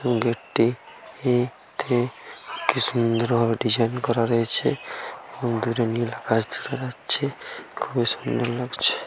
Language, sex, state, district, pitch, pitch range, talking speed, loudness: Bengali, male, West Bengal, Paschim Medinipur, 120 Hz, 115-125 Hz, 110 wpm, -23 LUFS